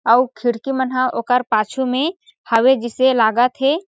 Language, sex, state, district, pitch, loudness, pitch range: Chhattisgarhi, female, Chhattisgarh, Sarguja, 255 Hz, -17 LUFS, 235-265 Hz